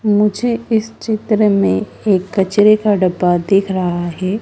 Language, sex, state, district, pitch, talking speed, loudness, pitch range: Hindi, female, Madhya Pradesh, Dhar, 205 Hz, 150 wpm, -15 LUFS, 185-215 Hz